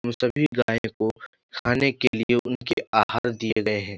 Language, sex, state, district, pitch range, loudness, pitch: Hindi, male, Bihar, Jahanabad, 110-125 Hz, -24 LUFS, 120 Hz